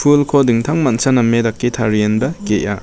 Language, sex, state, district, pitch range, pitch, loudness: Garo, male, Meghalaya, West Garo Hills, 110-140 Hz, 120 Hz, -15 LUFS